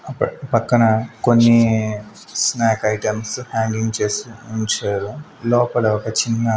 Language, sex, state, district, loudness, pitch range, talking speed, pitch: Telugu, male, Andhra Pradesh, Manyam, -19 LUFS, 110-120 Hz, 100 wpm, 110 Hz